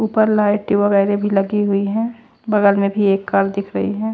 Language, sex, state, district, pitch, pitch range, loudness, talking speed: Hindi, female, Chandigarh, Chandigarh, 205 Hz, 200-215 Hz, -17 LUFS, 220 wpm